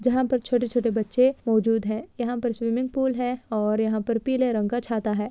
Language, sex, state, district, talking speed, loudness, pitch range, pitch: Hindi, female, Bihar, Darbhanga, 215 wpm, -24 LUFS, 220-250 Hz, 240 Hz